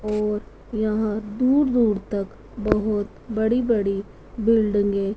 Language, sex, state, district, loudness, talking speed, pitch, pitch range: Hindi, female, Punjab, Fazilka, -23 LUFS, 95 wpm, 215 Hz, 205-225 Hz